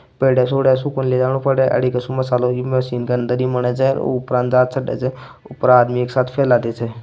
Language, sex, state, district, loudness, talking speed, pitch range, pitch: Marwari, male, Rajasthan, Nagaur, -17 LUFS, 35 wpm, 125-130 Hz, 125 Hz